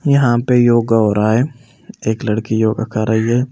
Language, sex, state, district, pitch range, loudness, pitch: Hindi, male, Delhi, New Delhi, 110-125 Hz, -15 LUFS, 115 Hz